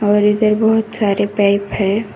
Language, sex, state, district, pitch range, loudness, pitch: Hindi, female, Karnataka, Koppal, 200-215 Hz, -15 LUFS, 210 Hz